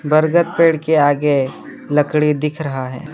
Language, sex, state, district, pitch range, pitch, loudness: Hindi, male, West Bengal, Alipurduar, 145-155 Hz, 150 Hz, -16 LUFS